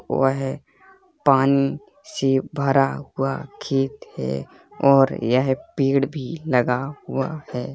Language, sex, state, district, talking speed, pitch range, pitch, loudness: Hindi, male, Uttar Pradesh, Hamirpur, 115 wpm, 135-140 Hz, 135 Hz, -22 LUFS